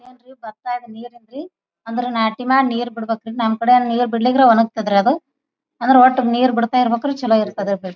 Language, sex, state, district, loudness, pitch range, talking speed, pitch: Kannada, female, Karnataka, Bijapur, -17 LUFS, 225-255 Hz, 165 wpm, 240 Hz